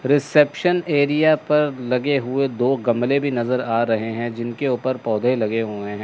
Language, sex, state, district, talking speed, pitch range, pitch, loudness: Hindi, male, Chandigarh, Chandigarh, 180 wpm, 120-145 Hz, 125 Hz, -20 LUFS